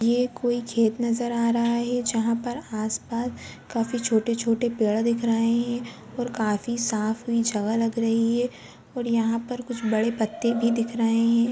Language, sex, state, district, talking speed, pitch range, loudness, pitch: Hindi, female, Bihar, Jamui, 165 wpm, 225-240 Hz, -25 LUFS, 235 Hz